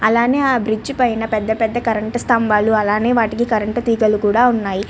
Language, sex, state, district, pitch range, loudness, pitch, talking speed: Telugu, female, Andhra Pradesh, Srikakulam, 215-240 Hz, -16 LUFS, 225 Hz, 170 wpm